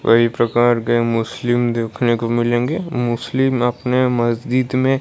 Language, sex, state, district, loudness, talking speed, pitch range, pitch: Hindi, male, Odisha, Malkangiri, -18 LUFS, 130 wpm, 120-125 Hz, 120 Hz